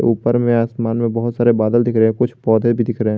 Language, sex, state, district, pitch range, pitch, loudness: Hindi, male, Jharkhand, Garhwa, 115-120 Hz, 115 Hz, -16 LUFS